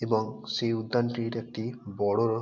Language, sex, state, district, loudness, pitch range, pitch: Bengali, male, West Bengal, North 24 Parganas, -30 LUFS, 110-115 Hz, 115 Hz